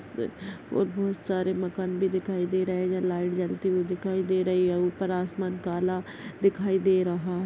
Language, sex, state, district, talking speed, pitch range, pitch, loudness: Hindi, female, Chhattisgarh, Bastar, 185 wpm, 180-190 Hz, 185 Hz, -28 LUFS